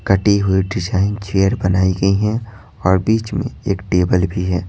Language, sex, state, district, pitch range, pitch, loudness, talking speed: Hindi, male, Bihar, Patna, 95-105 Hz, 95 Hz, -17 LUFS, 180 wpm